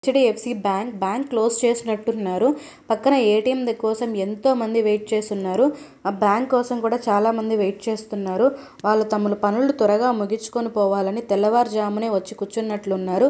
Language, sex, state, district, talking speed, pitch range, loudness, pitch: Telugu, female, Telangana, Karimnagar, 130 wpm, 205-240 Hz, -21 LUFS, 220 Hz